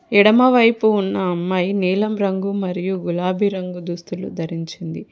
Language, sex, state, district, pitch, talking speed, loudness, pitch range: Telugu, female, Telangana, Hyderabad, 190 Hz, 115 wpm, -19 LUFS, 180-205 Hz